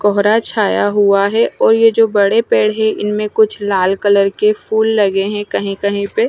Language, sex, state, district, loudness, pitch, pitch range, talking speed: Hindi, female, Punjab, Kapurthala, -14 LUFS, 205 Hz, 200-220 Hz, 200 wpm